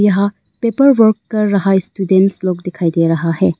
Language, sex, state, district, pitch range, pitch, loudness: Hindi, female, Arunachal Pradesh, Longding, 180-210 Hz, 195 Hz, -14 LUFS